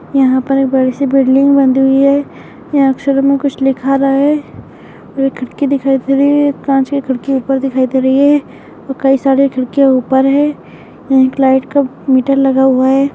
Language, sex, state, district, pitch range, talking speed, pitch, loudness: Hindi, female, Bihar, Madhepura, 265-275 Hz, 205 wpm, 270 Hz, -12 LUFS